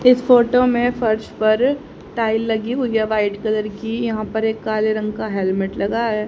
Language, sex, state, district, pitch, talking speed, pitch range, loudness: Hindi, female, Haryana, Jhajjar, 220 Hz, 200 wpm, 215-240 Hz, -19 LUFS